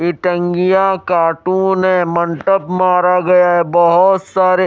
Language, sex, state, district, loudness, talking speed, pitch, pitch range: Hindi, male, Odisha, Malkangiri, -13 LUFS, 115 wpm, 180 Hz, 175-185 Hz